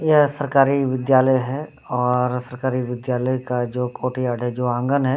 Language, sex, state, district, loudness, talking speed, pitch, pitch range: Hindi, male, Jharkhand, Sahebganj, -21 LUFS, 130 wpm, 130 Hz, 125-135 Hz